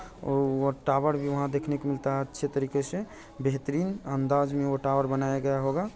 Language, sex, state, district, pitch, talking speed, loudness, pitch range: Hindi, male, Bihar, Purnia, 140 Hz, 190 wpm, -28 LUFS, 135-145 Hz